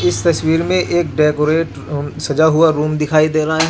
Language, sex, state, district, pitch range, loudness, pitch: Hindi, male, Jharkhand, Garhwa, 150-165 Hz, -15 LUFS, 155 Hz